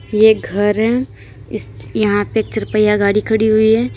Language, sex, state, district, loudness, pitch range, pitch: Hindi, female, Uttar Pradesh, Lalitpur, -15 LUFS, 210-220 Hz, 215 Hz